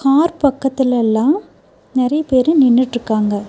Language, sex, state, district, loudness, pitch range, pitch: Tamil, female, Tamil Nadu, Nilgiris, -15 LUFS, 240-280 Hz, 260 Hz